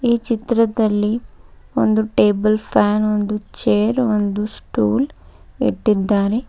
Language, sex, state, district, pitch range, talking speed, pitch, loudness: Kannada, female, Karnataka, Bidar, 210-230 Hz, 90 wpm, 215 Hz, -18 LUFS